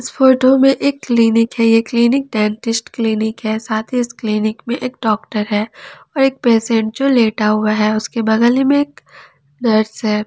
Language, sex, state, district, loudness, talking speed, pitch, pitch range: Hindi, female, Jharkhand, Palamu, -15 LUFS, 180 wpm, 230 Hz, 215-250 Hz